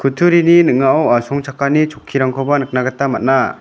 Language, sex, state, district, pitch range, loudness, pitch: Garo, male, Meghalaya, West Garo Hills, 135-150 Hz, -14 LUFS, 140 Hz